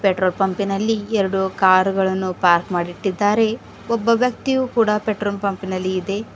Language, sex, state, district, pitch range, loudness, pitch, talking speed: Kannada, female, Karnataka, Bidar, 190-215 Hz, -19 LUFS, 195 Hz, 140 wpm